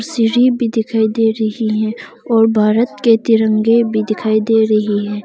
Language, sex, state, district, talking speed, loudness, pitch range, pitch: Hindi, female, Arunachal Pradesh, Longding, 170 wpm, -14 LUFS, 215-230 Hz, 220 Hz